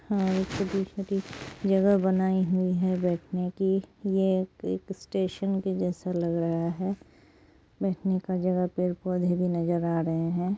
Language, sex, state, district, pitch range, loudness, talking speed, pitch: Hindi, female, West Bengal, Jalpaiguri, 175-190 Hz, -28 LUFS, 140 wpm, 185 Hz